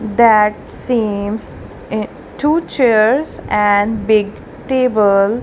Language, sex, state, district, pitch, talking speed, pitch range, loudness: English, female, Punjab, Kapurthala, 215 Hz, 75 wpm, 210-245 Hz, -15 LUFS